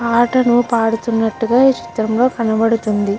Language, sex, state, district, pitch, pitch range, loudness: Telugu, female, Andhra Pradesh, Guntur, 230 Hz, 225-240 Hz, -15 LUFS